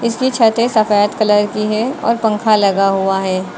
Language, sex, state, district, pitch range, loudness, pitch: Hindi, female, Uttar Pradesh, Lucknow, 205-230 Hz, -14 LUFS, 215 Hz